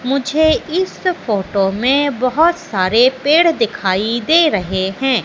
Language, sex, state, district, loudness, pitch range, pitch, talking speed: Hindi, female, Madhya Pradesh, Katni, -15 LUFS, 205-315 Hz, 260 Hz, 125 wpm